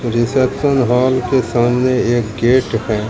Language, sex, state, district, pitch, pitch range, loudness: Hindi, male, Bihar, Katihar, 125 Hz, 115-130 Hz, -15 LUFS